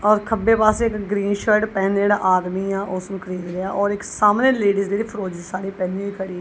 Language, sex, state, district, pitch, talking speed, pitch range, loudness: Punjabi, female, Punjab, Kapurthala, 200 Hz, 225 wpm, 190-210 Hz, -20 LUFS